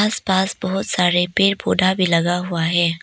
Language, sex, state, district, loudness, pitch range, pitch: Hindi, female, Arunachal Pradesh, Papum Pare, -18 LUFS, 175-195 Hz, 185 Hz